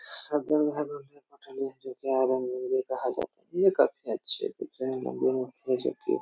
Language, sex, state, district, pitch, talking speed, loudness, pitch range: Hindi, male, Jharkhand, Jamtara, 135 Hz, 95 wpm, -29 LUFS, 130-150 Hz